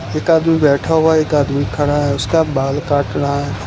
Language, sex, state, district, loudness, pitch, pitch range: Hindi, male, Gujarat, Valsad, -15 LUFS, 145 Hz, 140-160 Hz